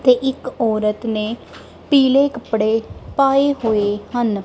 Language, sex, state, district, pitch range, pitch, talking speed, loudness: Punjabi, female, Punjab, Kapurthala, 215-265 Hz, 235 Hz, 120 wpm, -18 LUFS